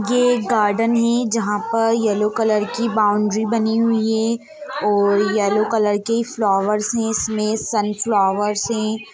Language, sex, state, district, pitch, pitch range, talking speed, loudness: Hindi, female, Bihar, Sitamarhi, 220 Hz, 210-230 Hz, 145 wpm, -19 LUFS